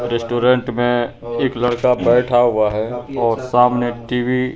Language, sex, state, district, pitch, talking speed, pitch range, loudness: Hindi, male, Bihar, Katihar, 120 Hz, 145 wpm, 120-125 Hz, -17 LUFS